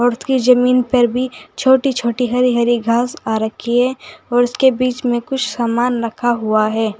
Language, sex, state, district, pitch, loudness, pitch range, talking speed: Hindi, female, Uttar Pradesh, Saharanpur, 245 Hz, -16 LUFS, 235-255 Hz, 180 wpm